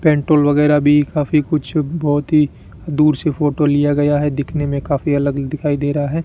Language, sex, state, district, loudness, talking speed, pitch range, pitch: Hindi, male, Rajasthan, Bikaner, -16 LUFS, 200 wpm, 145-150 Hz, 145 Hz